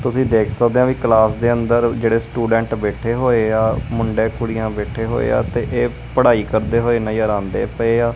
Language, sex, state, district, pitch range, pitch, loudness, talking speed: Punjabi, male, Punjab, Kapurthala, 110-120 Hz, 115 Hz, -17 LUFS, 190 wpm